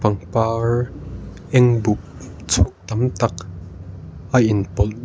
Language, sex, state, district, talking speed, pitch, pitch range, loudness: Mizo, male, Mizoram, Aizawl, 95 wpm, 100 Hz, 90-115 Hz, -19 LUFS